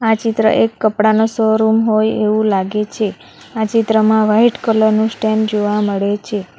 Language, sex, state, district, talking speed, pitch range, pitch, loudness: Gujarati, female, Gujarat, Valsad, 165 wpm, 210-220 Hz, 220 Hz, -15 LUFS